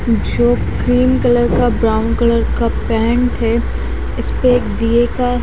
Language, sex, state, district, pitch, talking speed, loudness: Hindi, female, Haryana, Charkhi Dadri, 230 Hz, 145 wpm, -15 LUFS